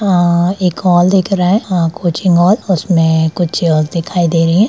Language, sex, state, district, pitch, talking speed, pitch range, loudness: Hindi, female, Bihar, Darbhanga, 175 Hz, 190 wpm, 170-185 Hz, -12 LUFS